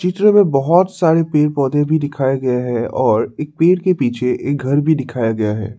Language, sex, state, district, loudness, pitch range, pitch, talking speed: Hindi, male, Assam, Sonitpur, -16 LUFS, 125-165 Hz, 145 Hz, 205 wpm